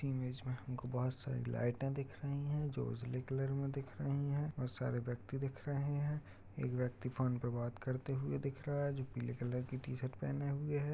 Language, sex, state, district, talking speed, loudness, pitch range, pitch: Hindi, male, Uttar Pradesh, Hamirpur, 220 wpm, -41 LUFS, 125-140 Hz, 130 Hz